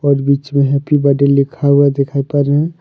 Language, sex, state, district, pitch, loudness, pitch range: Hindi, male, Jharkhand, Deoghar, 140 Hz, -13 LUFS, 140-145 Hz